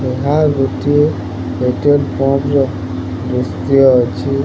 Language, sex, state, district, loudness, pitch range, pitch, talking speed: Odia, male, Odisha, Sambalpur, -15 LUFS, 95-140 Hz, 130 Hz, 95 wpm